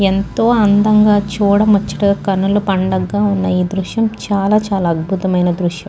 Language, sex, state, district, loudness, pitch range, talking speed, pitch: Telugu, female, Andhra Pradesh, Guntur, -14 LUFS, 190-205 Hz, 120 wpm, 200 Hz